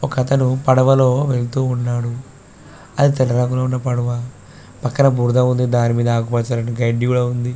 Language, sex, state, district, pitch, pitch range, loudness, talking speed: Telugu, male, Telangana, Karimnagar, 125 Hz, 120-130 Hz, -17 LUFS, 145 wpm